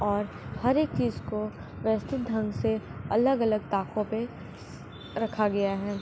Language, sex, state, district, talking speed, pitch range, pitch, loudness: Hindi, female, Bihar, Begusarai, 140 wpm, 190-225 Hz, 210 Hz, -29 LUFS